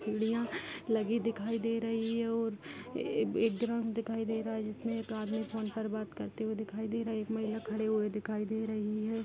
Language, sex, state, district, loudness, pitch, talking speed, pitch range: Hindi, female, Chhattisgarh, Kabirdham, -35 LUFS, 220 Hz, 210 wpm, 215-230 Hz